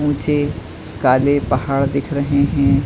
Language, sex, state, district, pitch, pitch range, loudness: Hindi, female, Uttar Pradesh, Etah, 140 Hz, 135-145 Hz, -17 LUFS